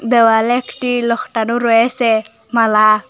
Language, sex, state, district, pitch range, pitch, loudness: Bengali, female, Assam, Hailakandi, 220-240 Hz, 230 Hz, -14 LUFS